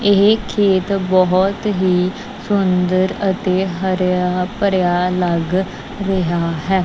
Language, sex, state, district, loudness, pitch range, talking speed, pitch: Punjabi, female, Punjab, Kapurthala, -17 LUFS, 180-195 Hz, 95 wpm, 185 Hz